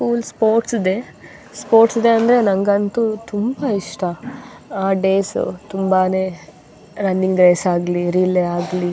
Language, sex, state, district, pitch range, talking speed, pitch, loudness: Kannada, female, Karnataka, Dakshina Kannada, 180-225 Hz, 120 wpm, 195 Hz, -17 LUFS